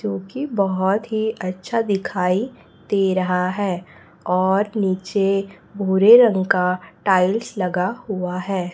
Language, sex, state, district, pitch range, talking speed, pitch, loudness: Hindi, female, Chhattisgarh, Raipur, 185-205 Hz, 125 wpm, 195 Hz, -20 LUFS